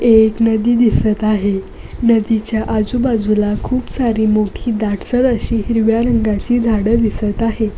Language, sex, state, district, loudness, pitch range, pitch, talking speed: Marathi, female, Maharashtra, Pune, -15 LUFS, 215-235 Hz, 225 Hz, 125 wpm